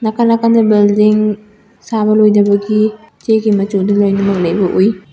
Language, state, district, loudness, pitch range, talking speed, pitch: Manipuri, Manipur, Imphal West, -12 LUFS, 200-220 Hz, 115 wpm, 210 Hz